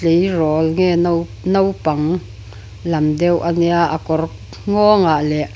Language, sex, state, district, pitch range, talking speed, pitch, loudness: Mizo, female, Mizoram, Aizawl, 155-175 Hz, 130 wpm, 165 Hz, -16 LUFS